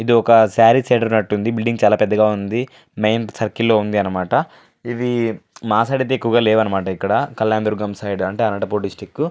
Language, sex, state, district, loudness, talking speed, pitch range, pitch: Telugu, male, Andhra Pradesh, Anantapur, -17 LUFS, 185 wpm, 105-115 Hz, 110 Hz